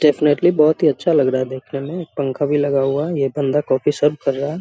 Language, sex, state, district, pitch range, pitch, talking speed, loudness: Hindi, male, Bihar, Samastipur, 135-150 Hz, 145 Hz, 300 wpm, -18 LUFS